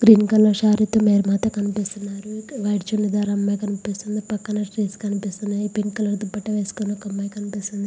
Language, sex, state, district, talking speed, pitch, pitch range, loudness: Telugu, female, Andhra Pradesh, Visakhapatnam, 150 wpm, 205 Hz, 200-210 Hz, -22 LUFS